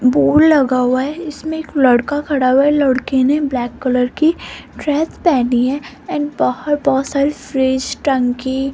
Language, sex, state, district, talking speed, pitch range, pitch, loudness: Hindi, female, Rajasthan, Jaipur, 165 wpm, 255-295 Hz, 275 Hz, -16 LUFS